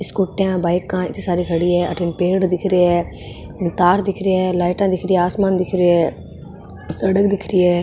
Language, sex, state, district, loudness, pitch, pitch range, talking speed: Marwari, female, Rajasthan, Nagaur, -18 LUFS, 180 Hz, 175-190 Hz, 200 wpm